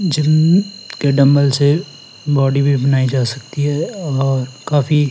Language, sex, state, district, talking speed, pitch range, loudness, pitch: Hindi, male, Himachal Pradesh, Shimla, 140 wpm, 135-150 Hz, -15 LUFS, 140 Hz